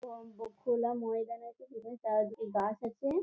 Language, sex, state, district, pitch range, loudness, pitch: Bengali, female, West Bengal, Jhargram, 225-240 Hz, -35 LUFS, 230 Hz